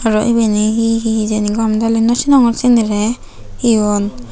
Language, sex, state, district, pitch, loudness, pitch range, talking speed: Chakma, female, Tripura, Unakoti, 225 Hz, -14 LUFS, 210-230 Hz, 165 wpm